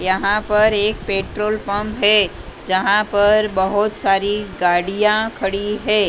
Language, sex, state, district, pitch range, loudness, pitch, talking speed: Hindi, female, Maharashtra, Mumbai Suburban, 195-210 Hz, -17 LUFS, 205 Hz, 140 wpm